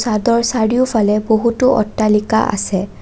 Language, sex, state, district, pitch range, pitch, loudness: Assamese, female, Assam, Kamrup Metropolitan, 210-235 Hz, 220 Hz, -15 LUFS